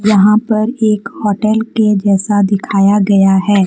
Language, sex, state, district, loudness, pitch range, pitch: Hindi, female, Jharkhand, Deoghar, -12 LUFS, 200-215 Hz, 205 Hz